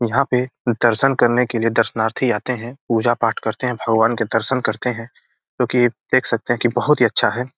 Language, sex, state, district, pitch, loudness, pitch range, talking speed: Hindi, male, Bihar, Gopalganj, 120 Hz, -19 LUFS, 115-125 Hz, 215 wpm